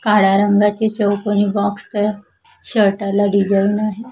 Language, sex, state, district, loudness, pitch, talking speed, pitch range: Marathi, female, Maharashtra, Washim, -16 LUFS, 205 Hz, 115 wpm, 200-210 Hz